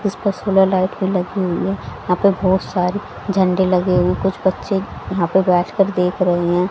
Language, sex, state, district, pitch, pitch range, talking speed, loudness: Hindi, female, Haryana, Jhajjar, 185 Hz, 180-190 Hz, 215 wpm, -18 LUFS